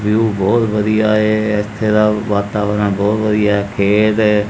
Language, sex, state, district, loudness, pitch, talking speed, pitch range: Punjabi, male, Punjab, Kapurthala, -15 LUFS, 105 Hz, 160 wpm, 105-110 Hz